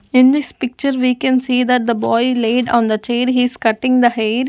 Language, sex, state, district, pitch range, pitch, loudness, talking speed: English, female, Punjab, Kapurthala, 235-255 Hz, 250 Hz, -15 LUFS, 240 wpm